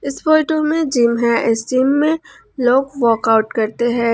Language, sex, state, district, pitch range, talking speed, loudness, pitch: Hindi, female, Jharkhand, Ranchi, 235-300 Hz, 175 wpm, -16 LUFS, 250 Hz